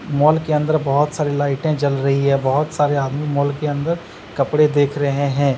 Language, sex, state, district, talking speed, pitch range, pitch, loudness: Hindi, male, Jharkhand, Deoghar, 205 wpm, 140-150 Hz, 145 Hz, -18 LUFS